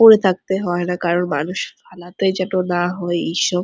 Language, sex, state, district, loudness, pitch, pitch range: Bengali, female, West Bengal, Purulia, -19 LUFS, 180 Hz, 175-185 Hz